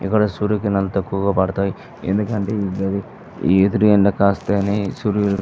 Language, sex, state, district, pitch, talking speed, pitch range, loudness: Telugu, male, Andhra Pradesh, Visakhapatnam, 100 Hz, 120 wpm, 95-105 Hz, -19 LUFS